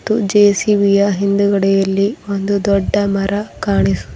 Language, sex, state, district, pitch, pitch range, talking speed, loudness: Kannada, female, Karnataka, Bidar, 200 Hz, 195-205 Hz, 115 wpm, -15 LUFS